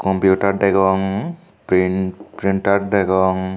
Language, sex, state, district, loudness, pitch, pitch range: Chakma, male, Tripura, Unakoti, -18 LUFS, 95 Hz, 95-100 Hz